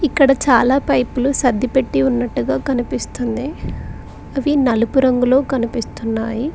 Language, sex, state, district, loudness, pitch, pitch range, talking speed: Telugu, female, Telangana, Mahabubabad, -17 LUFS, 250 Hz, 230-270 Hz, 90 wpm